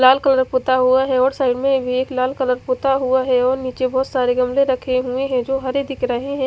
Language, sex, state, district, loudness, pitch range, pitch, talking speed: Hindi, female, Odisha, Khordha, -18 LUFS, 255-270 Hz, 260 Hz, 260 wpm